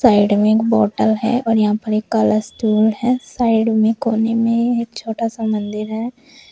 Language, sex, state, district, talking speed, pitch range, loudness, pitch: Hindi, female, Uttar Pradesh, Shamli, 195 wpm, 215-230 Hz, -17 LUFS, 225 Hz